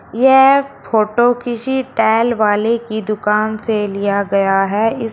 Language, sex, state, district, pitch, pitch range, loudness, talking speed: Hindi, female, Uttar Pradesh, Shamli, 220 Hz, 210-240 Hz, -15 LUFS, 140 wpm